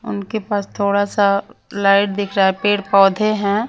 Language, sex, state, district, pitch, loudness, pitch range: Hindi, female, Punjab, Pathankot, 200 Hz, -17 LUFS, 200-205 Hz